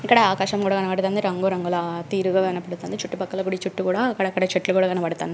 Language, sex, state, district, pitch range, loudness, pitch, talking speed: Telugu, female, Andhra Pradesh, Srikakulam, 185-195 Hz, -23 LUFS, 190 Hz, 200 wpm